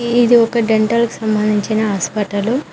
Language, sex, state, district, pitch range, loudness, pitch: Telugu, female, Telangana, Mahabubabad, 210-235 Hz, -15 LUFS, 220 Hz